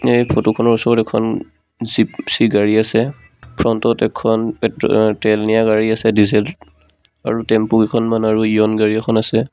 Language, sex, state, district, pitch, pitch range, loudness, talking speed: Assamese, male, Assam, Sonitpur, 110 Hz, 110-115 Hz, -16 LUFS, 165 wpm